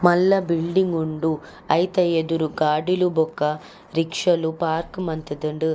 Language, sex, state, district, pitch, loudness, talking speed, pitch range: Tulu, female, Karnataka, Dakshina Kannada, 165 Hz, -22 LUFS, 105 wpm, 160-175 Hz